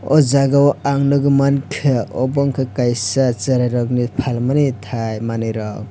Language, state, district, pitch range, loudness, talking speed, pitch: Kokborok, Tripura, West Tripura, 120-140 Hz, -17 LUFS, 160 wpm, 130 Hz